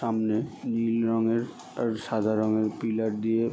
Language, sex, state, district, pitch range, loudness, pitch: Bengali, male, West Bengal, Jalpaiguri, 110-115 Hz, -27 LUFS, 115 Hz